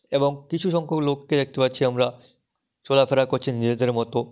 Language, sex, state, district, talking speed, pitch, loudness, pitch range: Bengali, male, West Bengal, Dakshin Dinajpur, 155 wpm, 135 Hz, -23 LUFS, 125-140 Hz